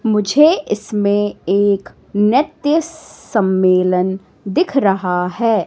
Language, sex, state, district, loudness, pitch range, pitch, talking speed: Hindi, female, Madhya Pradesh, Katni, -16 LUFS, 190-265 Hz, 205 Hz, 85 wpm